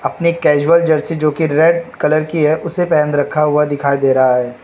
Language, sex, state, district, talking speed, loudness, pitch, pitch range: Hindi, male, Uttar Pradesh, Lucknow, 220 wpm, -14 LUFS, 150 Hz, 145-165 Hz